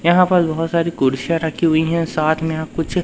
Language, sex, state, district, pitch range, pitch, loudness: Hindi, male, Madhya Pradesh, Umaria, 160-170 Hz, 165 Hz, -18 LUFS